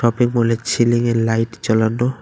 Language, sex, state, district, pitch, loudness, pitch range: Bengali, male, West Bengal, Cooch Behar, 115 Hz, -17 LUFS, 115-120 Hz